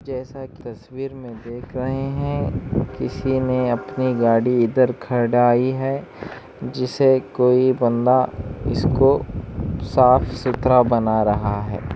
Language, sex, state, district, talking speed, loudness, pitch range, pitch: Hindi, female, Chhattisgarh, Bastar, 110 wpm, -19 LUFS, 120-130 Hz, 125 Hz